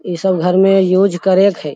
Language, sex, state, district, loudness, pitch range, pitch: Magahi, male, Bihar, Lakhisarai, -13 LUFS, 180-195 Hz, 185 Hz